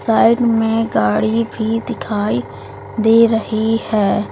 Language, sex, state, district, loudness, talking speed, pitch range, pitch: Hindi, female, Uttar Pradesh, Lalitpur, -16 LUFS, 110 wpm, 135-225 Hz, 220 Hz